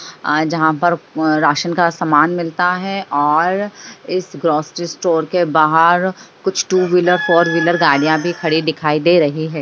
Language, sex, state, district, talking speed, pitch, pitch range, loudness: Hindi, female, Bihar, Jamui, 150 wpm, 170 Hz, 155-180 Hz, -15 LUFS